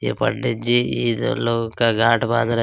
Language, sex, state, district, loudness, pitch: Hindi, male, Chhattisgarh, Kabirdham, -20 LUFS, 115 Hz